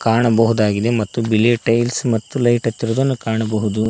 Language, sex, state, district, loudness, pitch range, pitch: Kannada, male, Karnataka, Koppal, -17 LUFS, 110-120 Hz, 115 Hz